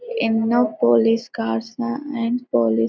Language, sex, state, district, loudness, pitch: Telugu, female, Telangana, Karimnagar, -20 LUFS, 230 Hz